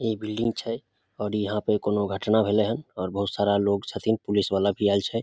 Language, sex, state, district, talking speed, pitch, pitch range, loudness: Maithili, male, Bihar, Samastipur, 230 wpm, 105 Hz, 100-110 Hz, -25 LUFS